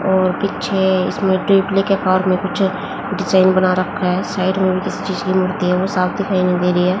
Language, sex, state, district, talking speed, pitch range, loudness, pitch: Hindi, female, Haryana, Jhajjar, 205 wpm, 185-195 Hz, -17 LUFS, 185 Hz